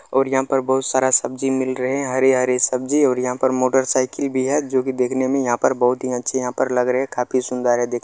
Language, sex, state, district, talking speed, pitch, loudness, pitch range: Maithili, male, Bihar, Kishanganj, 270 wpm, 130 Hz, -19 LUFS, 125-130 Hz